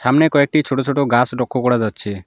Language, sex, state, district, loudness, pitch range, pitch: Bengali, male, West Bengal, Alipurduar, -17 LUFS, 120-140 Hz, 125 Hz